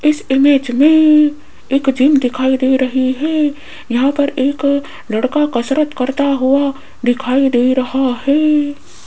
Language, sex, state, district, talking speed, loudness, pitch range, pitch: Hindi, female, Rajasthan, Jaipur, 130 wpm, -14 LUFS, 260-290 Hz, 275 Hz